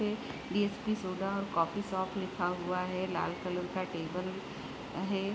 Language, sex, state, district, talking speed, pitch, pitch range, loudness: Hindi, female, Bihar, Gopalganj, 145 wpm, 185 Hz, 180-200 Hz, -35 LUFS